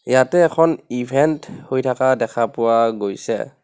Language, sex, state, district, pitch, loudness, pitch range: Assamese, male, Assam, Kamrup Metropolitan, 130 Hz, -18 LUFS, 115-155 Hz